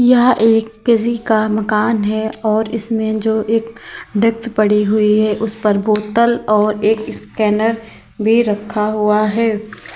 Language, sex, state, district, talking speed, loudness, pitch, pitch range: Hindi, female, Uttar Pradesh, Lalitpur, 145 wpm, -15 LUFS, 220 Hz, 215-225 Hz